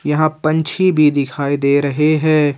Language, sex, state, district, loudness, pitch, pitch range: Hindi, male, Jharkhand, Ranchi, -15 LUFS, 150 Hz, 145-155 Hz